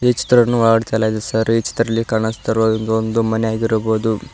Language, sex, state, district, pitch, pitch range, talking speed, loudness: Kannada, male, Karnataka, Koppal, 110 Hz, 110-115 Hz, 150 wpm, -17 LUFS